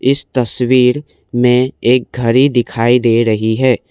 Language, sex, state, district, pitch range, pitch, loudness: Hindi, male, Assam, Kamrup Metropolitan, 115-130 Hz, 125 Hz, -13 LUFS